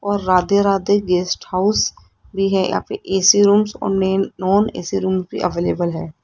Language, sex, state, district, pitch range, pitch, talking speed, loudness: Hindi, female, Rajasthan, Jaipur, 185-200 Hz, 195 Hz, 185 wpm, -18 LUFS